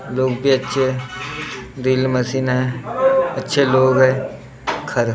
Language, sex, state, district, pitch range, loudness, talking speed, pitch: Hindi, male, Maharashtra, Gondia, 130-135 Hz, -18 LUFS, 115 wpm, 130 Hz